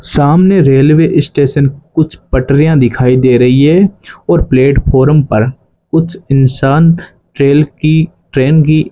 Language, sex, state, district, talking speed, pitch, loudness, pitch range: Hindi, male, Rajasthan, Bikaner, 130 wpm, 140 Hz, -10 LUFS, 130-160 Hz